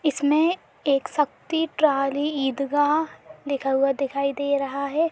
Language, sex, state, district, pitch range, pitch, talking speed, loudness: Hindi, female, Uttar Pradesh, Jalaun, 275-305 Hz, 285 Hz, 130 wpm, -23 LUFS